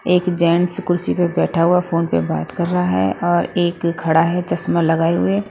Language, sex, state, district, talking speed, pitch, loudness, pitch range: Hindi, female, Haryana, Rohtak, 205 wpm, 175 Hz, -18 LUFS, 165-180 Hz